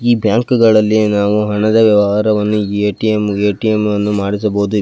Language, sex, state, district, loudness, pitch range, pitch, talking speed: Kannada, male, Karnataka, Belgaum, -13 LUFS, 105-110 Hz, 105 Hz, 100 wpm